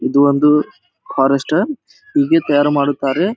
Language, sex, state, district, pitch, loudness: Kannada, male, Karnataka, Bijapur, 150 Hz, -15 LUFS